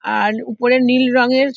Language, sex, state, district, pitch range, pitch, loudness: Bengali, female, West Bengal, Dakshin Dinajpur, 235-255 Hz, 250 Hz, -15 LUFS